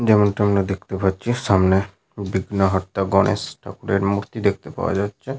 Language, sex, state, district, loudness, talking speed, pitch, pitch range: Bengali, male, Jharkhand, Sahebganj, -21 LUFS, 135 wpm, 100 Hz, 95-105 Hz